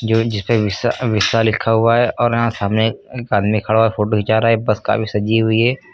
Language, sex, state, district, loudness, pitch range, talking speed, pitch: Hindi, male, Uttar Pradesh, Lucknow, -16 LUFS, 110-115 Hz, 250 wpm, 110 Hz